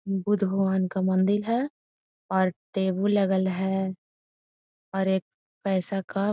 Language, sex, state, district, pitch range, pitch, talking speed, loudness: Magahi, female, Bihar, Gaya, 190-200 Hz, 190 Hz, 135 wpm, -26 LUFS